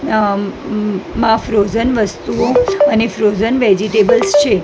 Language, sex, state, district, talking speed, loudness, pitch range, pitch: Gujarati, female, Gujarat, Gandhinagar, 115 wpm, -14 LUFS, 200-230 Hz, 215 Hz